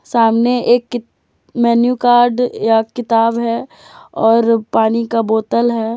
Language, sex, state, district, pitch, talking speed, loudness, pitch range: Hindi, female, Jharkhand, Deoghar, 230 Hz, 120 wpm, -14 LUFS, 225-240 Hz